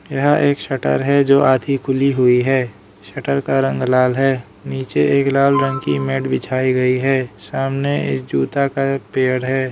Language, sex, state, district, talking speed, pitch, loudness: Hindi, male, Arunachal Pradesh, Lower Dibang Valley, 185 wpm, 130 Hz, -17 LUFS